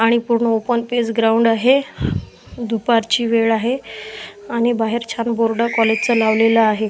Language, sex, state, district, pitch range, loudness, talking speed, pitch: Marathi, male, Maharashtra, Washim, 225-235 Hz, -17 LUFS, 150 wpm, 230 Hz